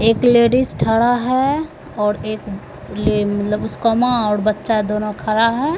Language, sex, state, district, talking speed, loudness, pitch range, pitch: Hindi, female, Bihar, Begusarai, 145 wpm, -17 LUFS, 210-245 Hz, 225 Hz